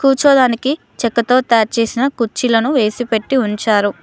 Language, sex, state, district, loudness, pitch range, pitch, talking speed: Telugu, female, Telangana, Mahabubabad, -15 LUFS, 225-265 Hz, 235 Hz, 105 wpm